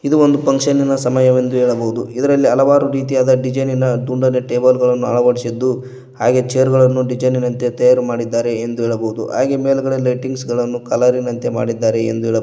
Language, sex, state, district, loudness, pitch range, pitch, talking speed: Kannada, male, Karnataka, Koppal, -15 LUFS, 120-130 Hz, 125 Hz, 145 wpm